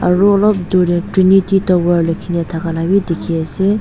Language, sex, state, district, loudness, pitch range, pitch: Nagamese, female, Nagaland, Dimapur, -14 LUFS, 170-195 Hz, 180 Hz